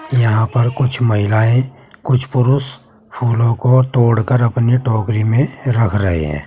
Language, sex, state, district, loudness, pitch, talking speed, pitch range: Hindi, male, Uttar Pradesh, Saharanpur, -15 LUFS, 120 Hz, 140 wpm, 110-125 Hz